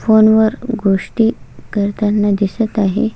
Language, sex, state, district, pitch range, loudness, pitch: Marathi, female, Maharashtra, Solapur, 205-225 Hz, -15 LUFS, 215 Hz